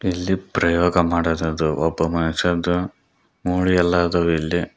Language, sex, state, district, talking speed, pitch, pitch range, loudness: Kannada, male, Karnataka, Koppal, 100 wpm, 85 Hz, 80-90 Hz, -20 LUFS